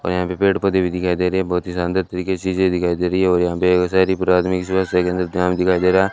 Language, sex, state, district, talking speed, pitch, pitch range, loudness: Hindi, male, Rajasthan, Bikaner, 295 wpm, 90 Hz, 90-95 Hz, -18 LUFS